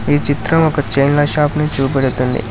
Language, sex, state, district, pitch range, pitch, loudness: Telugu, male, Telangana, Hyderabad, 135-150 Hz, 145 Hz, -15 LUFS